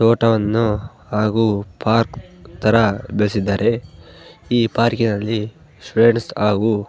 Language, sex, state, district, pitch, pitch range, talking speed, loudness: Kannada, male, Karnataka, Bellary, 110 Hz, 100-115 Hz, 95 wpm, -18 LUFS